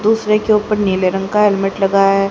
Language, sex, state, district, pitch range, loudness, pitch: Hindi, female, Haryana, Charkhi Dadri, 195-210 Hz, -14 LUFS, 195 Hz